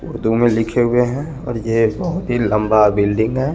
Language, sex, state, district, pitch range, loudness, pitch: Hindi, male, Chandigarh, Chandigarh, 110-130 Hz, -17 LUFS, 120 Hz